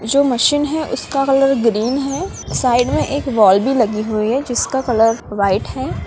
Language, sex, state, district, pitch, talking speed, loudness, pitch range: Hindi, female, Bihar, Madhepura, 245 Hz, 190 wpm, -16 LUFS, 220-275 Hz